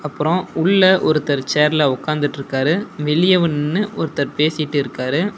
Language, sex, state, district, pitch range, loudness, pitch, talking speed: Tamil, male, Tamil Nadu, Nilgiris, 145-175 Hz, -17 LUFS, 155 Hz, 100 wpm